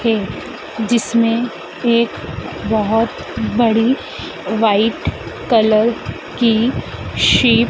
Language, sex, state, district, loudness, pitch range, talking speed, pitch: Hindi, female, Madhya Pradesh, Dhar, -16 LUFS, 220-235 Hz, 80 wpm, 225 Hz